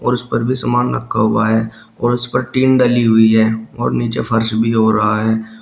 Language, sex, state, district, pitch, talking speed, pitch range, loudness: Hindi, male, Uttar Pradesh, Shamli, 110 Hz, 225 wpm, 110-120 Hz, -15 LUFS